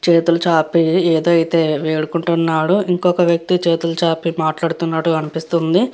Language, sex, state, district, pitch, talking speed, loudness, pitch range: Telugu, female, Andhra Pradesh, Guntur, 165 Hz, 100 wpm, -16 LUFS, 160-170 Hz